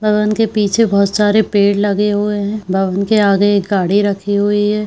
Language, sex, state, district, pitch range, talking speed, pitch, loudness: Hindi, female, Jharkhand, Jamtara, 200-210 Hz, 210 wpm, 205 Hz, -14 LUFS